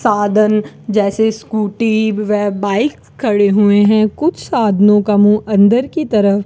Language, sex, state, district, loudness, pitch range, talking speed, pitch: Hindi, female, Rajasthan, Bikaner, -13 LUFS, 205-220 Hz, 150 wpm, 210 Hz